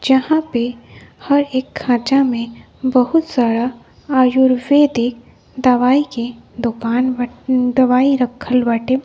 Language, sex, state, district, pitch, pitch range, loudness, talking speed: Hindi, female, Bihar, West Champaran, 255 Hz, 245-265 Hz, -16 LUFS, 105 wpm